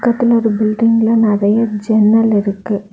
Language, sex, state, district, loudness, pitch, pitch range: Tamil, female, Tamil Nadu, Kanyakumari, -13 LUFS, 220 Hz, 205-230 Hz